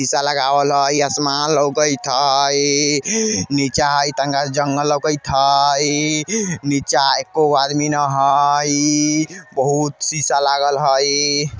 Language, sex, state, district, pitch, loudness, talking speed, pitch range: Maithili, male, Bihar, Vaishali, 145 Hz, -16 LUFS, 110 wpm, 140-150 Hz